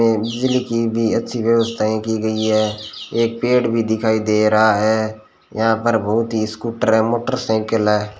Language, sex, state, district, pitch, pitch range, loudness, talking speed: Hindi, male, Rajasthan, Bikaner, 110 Hz, 110-115 Hz, -18 LUFS, 175 wpm